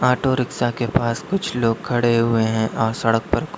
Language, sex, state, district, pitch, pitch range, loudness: Hindi, male, Uttar Pradesh, Lalitpur, 120 Hz, 115-125 Hz, -20 LUFS